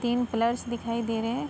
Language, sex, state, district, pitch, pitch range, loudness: Hindi, female, Uttar Pradesh, Budaun, 235 Hz, 230-240 Hz, -28 LUFS